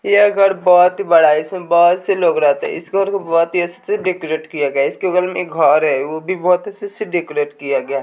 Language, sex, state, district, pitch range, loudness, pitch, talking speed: Hindi, male, Bihar, West Champaran, 155-190 Hz, -16 LUFS, 175 Hz, 285 wpm